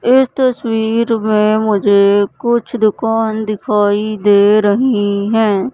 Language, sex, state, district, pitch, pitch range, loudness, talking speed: Hindi, female, Madhya Pradesh, Katni, 215 Hz, 205-230 Hz, -13 LUFS, 105 wpm